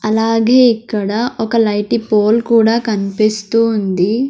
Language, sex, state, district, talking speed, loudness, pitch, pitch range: Telugu, female, Andhra Pradesh, Sri Satya Sai, 110 wpm, -14 LUFS, 225 Hz, 210-230 Hz